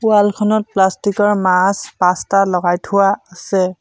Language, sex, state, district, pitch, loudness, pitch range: Assamese, male, Assam, Sonitpur, 195 Hz, -15 LUFS, 185-205 Hz